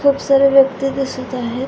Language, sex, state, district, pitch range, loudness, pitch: Marathi, female, Maharashtra, Pune, 260-275 Hz, -15 LUFS, 275 Hz